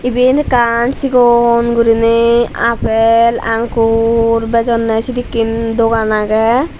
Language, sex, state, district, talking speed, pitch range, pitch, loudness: Chakma, female, Tripura, Dhalai, 90 wpm, 225-240 Hz, 230 Hz, -12 LUFS